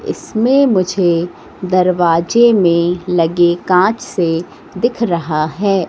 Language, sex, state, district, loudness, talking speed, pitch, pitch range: Hindi, female, Madhya Pradesh, Katni, -14 LUFS, 100 wpm, 180 Hz, 170-205 Hz